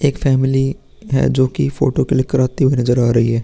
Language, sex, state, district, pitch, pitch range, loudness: Hindi, male, Uttar Pradesh, Muzaffarnagar, 130 Hz, 120-135 Hz, -16 LUFS